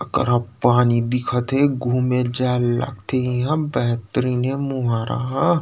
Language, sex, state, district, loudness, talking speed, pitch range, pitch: Chhattisgarhi, male, Chhattisgarh, Rajnandgaon, -20 LUFS, 115 wpm, 120-135 Hz, 125 Hz